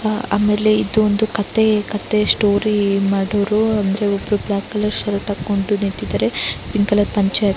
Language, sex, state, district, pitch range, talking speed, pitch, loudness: Kannada, female, Karnataka, Raichur, 200-210 Hz, 150 wpm, 205 Hz, -18 LUFS